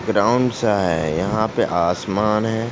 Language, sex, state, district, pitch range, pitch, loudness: Hindi, male, Uttar Pradesh, Ghazipur, 95-110 Hz, 105 Hz, -19 LUFS